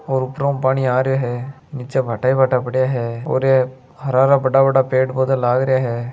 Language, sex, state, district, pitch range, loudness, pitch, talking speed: Hindi, male, Rajasthan, Nagaur, 125-135 Hz, -18 LUFS, 130 Hz, 225 wpm